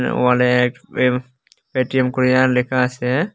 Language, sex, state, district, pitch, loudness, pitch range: Bengali, male, Tripura, Unakoti, 125 Hz, -18 LUFS, 125-130 Hz